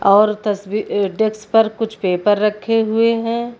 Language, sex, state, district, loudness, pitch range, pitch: Hindi, female, Uttar Pradesh, Lucknow, -17 LUFS, 205-225 Hz, 215 Hz